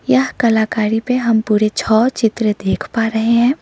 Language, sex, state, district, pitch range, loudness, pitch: Hindi, female, Sikkim, Gangtok, 215-230 Hz, -16 LUFS, 225 Hz